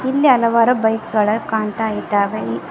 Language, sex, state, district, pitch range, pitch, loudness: Kannada, female, Karnataka, Koppal, 210-230 Hz, 220 Hz, -17 LUFS